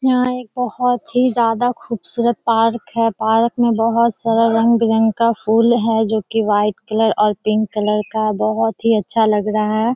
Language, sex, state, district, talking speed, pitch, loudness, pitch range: Hindi, female, Bihar, Kishanganj, 180 wpm, 225 Hz, -17 LUFS, 215-235 Hz